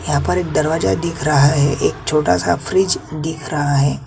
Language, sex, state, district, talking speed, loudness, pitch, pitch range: Hindi, male, Chhattisgarh, Kabirdham, 205 wpm, -17 LUFS, 150 Hz, 140-160 Hz